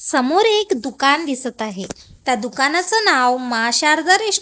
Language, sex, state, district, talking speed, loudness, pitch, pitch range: Marathi, female, Maharashtra, Gondia, 135 wpm, -17 LUFS, 270 Hz, 250-370 Hz